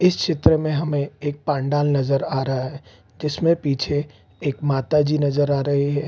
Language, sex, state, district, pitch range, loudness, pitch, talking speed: Hindi, male, Bihar, East Champaran, 135-150 Hz, -21 LUFS, 145 Hz, 185 wpm